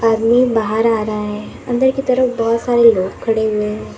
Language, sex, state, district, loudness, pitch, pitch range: Hindi, female, Uttar Pradesh, Lalitpur, -16 LUFS, 225 Hz, 215-240 Hz